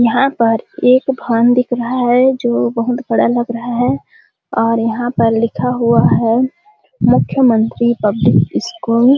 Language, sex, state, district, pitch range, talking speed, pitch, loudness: Hindi, female, Chhattisgarh, Sarguja, 230-255 Hz, 150 wpm, 240 Hz, -14 LUFS